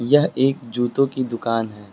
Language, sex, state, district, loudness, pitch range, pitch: Hindi, male, Uttar Pradesh, Lucknow, -21 LUFS, 115-135 Hz, 120 Hz